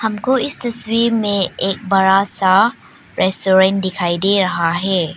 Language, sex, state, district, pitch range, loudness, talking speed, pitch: Hindi, female, Arunachal Pradesh, Papum Pare, 185-220 Hz, -15 LUFS, 140 wpm, 195 Hz